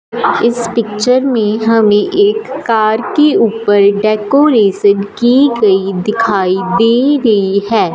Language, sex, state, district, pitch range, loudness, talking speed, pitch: Hindi, female, Punjab, Fazilka, 205-245 Hz, -11 LUFS, 115 wpm, 225 Hz